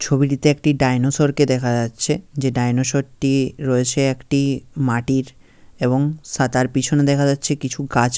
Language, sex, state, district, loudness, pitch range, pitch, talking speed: Bengali, male, West Bengal, Jhargram, -19 LUFS, 125-140 Hz, 135 Hz, 155 wpm